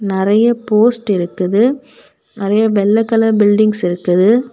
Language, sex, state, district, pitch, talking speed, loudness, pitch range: Tamil, female, Tamil Nadu, Kanyakumari, 215 Hz, 105 wpm, -13 LUFS, 195-225 Hz